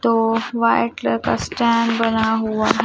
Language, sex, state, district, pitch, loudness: Hindi, female, Chhattisgarh, Raipur, 225 Hz, -19 LUFS